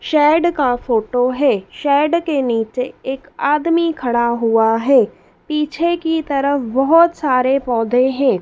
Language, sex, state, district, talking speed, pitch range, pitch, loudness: Hindi, female, Madhya Pradesh, Dhar, 135 wpm, 245-305 Hz, 270 Hz, -16 LUFS